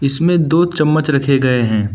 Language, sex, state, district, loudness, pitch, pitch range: Hindi, male, Arunachal Pradesh, Lower Dibang Valley, -14 LUFS, 140 Hz, 130-160 Hz